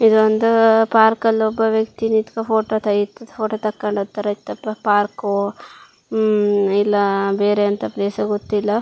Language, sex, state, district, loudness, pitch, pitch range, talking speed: Kannada, female, Karnataka, Shimoga, -18 LUFS, 215 Hz, 205-220 Hz, 120 wpm